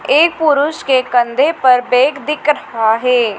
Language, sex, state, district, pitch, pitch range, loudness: Hindi, female, Madhya Pradesh, Dhar, 265 Hz, 245-300 Hz, -13 LUFS